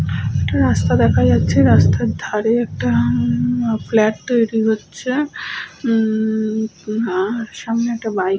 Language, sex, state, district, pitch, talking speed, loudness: Bengali, female, West Bengal, Paschim Medinipur, 195 Hz, 135 wpm, -18 LUFS